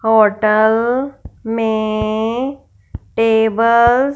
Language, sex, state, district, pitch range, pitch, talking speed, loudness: Hindi, female, Punjab, Fazilka, 215-235 Hz, 225 Hz, 60 wpm, -15 LUFS